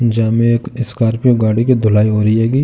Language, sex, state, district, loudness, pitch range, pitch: Hindi, male, Uttar Pradesh, Jalaun, -14 LUFS, 110-120 Hz, 115 Hz